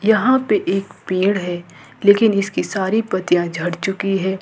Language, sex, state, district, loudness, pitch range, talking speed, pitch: Hindi, female, Jharkhand, Ranchi, -18 LUFS, 175-205 Hz, 165 wpm, 190 Hz